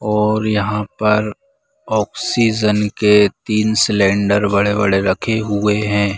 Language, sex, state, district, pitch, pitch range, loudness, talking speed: Hindi, male, Bihar, Saran, 105 Hz, 105-110 Hz, -16 LUFS, 105 wpm